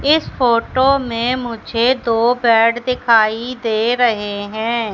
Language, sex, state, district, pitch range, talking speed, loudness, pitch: Hindi, female, Madhya Pradesh, Katni, 225-250 Hz, 120 wpm, -16 LUFS, 235 Hz